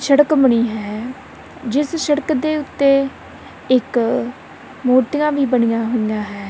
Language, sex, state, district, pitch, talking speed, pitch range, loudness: Punjabi, female, Punjab, Kapurthala, 260 Hz, 120 wpm, 235-290 Hz, -17 LUFS